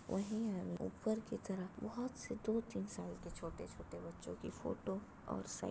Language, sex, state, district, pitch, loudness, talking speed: Hindi, female, Uttar Pradesh, Budaun, 185 Hz, -44 LUFS, 170 wpm